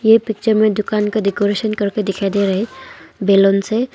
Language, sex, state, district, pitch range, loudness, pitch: Hindi, female, Arunachal Pradesh, Longding, 200-220 Hz, -16 LUFS, 210 Hz